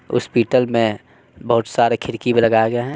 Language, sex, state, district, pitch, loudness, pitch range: Hindi, male, Bihar, West Champaran, 120 Hz, -18 LUFS, 115-120 Hz